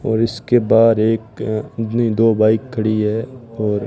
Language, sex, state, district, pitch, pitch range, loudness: Hindi, male, Rajasthan, Bikaner, 110 Hz, 110-115 Hz, -17 LUFS